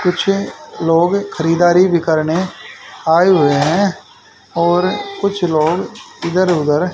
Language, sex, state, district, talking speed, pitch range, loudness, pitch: Hindi, male, Haryana, Jhajjar, 110 wpm, 165-185 Hz, -15 LUFS, 175 Hz